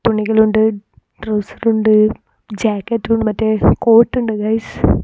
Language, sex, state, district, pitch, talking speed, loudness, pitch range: Malayalam, female, Kerala, Kozhikode, 220 Hz, 95 wpm, -15 LUFS, 215-225 Hz